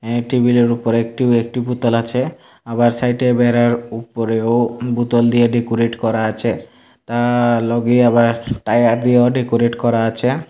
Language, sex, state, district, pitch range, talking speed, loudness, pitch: Bengali, male, Tripura, Unakoti, 115-120 Hz, 135 wpm, -16 LUFS, 120 Hz